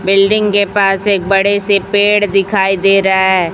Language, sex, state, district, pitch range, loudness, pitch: Hindi, female, Chhattisgarh, Raipur, 195-205 Hz, -11 LUFS, 195 Hz